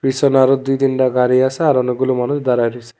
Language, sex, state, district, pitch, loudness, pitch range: Bengali, male, Tripura, West Tripura, 130 Hz, -15 LUFS, 125-135 Hz